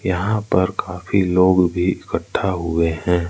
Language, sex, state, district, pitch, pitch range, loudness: Hindi, male, Madhya Pradesh, Umaria, 90 Hz, 90-95 Hz, -19 LUFS